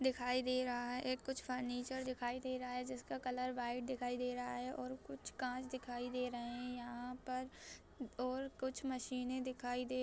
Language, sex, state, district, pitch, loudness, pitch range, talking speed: Hindi, female, Bihar, Purnia, 250 Hz, -43 LUFS, 245-255 Hz, 205 wpm